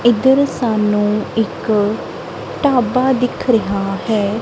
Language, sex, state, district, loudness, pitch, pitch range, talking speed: Punjabi, female, Punjab, Kapurthala, -16 LUFS, 225 Hz, 210-250 Hz, 95 wpm